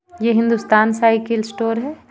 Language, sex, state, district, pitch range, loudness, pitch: Hindi, female, Jharkhand, Ranchi, 225-230 Hz, -17 LUFS, 230 Hz